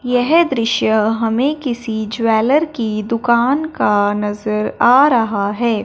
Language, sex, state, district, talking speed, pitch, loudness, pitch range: Hindi, female, Punjab, Fazilka, 125 wpm, 230 Hz, -16 LUFS, 215-250 Hz